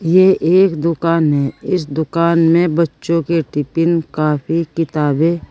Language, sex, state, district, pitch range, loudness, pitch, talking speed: Hindi, female, Uttar Pradesh, Saharanpur, 155-170 Hz, -15 LUFS, 165 Hz, 130 wpm